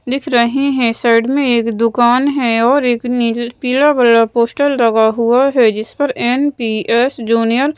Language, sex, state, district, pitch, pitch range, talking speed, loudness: Hindi, female, Madhya Pradesh, Bhopal, 240 Hz, 230-265 Hz, 170 wpm, -13 LUFS